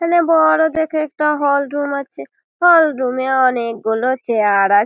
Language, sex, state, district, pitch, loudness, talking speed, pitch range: Bengali, female, West Bengal, Malda, 280 Hz, -16 LUFS, 135 wpm, 235-315 Hz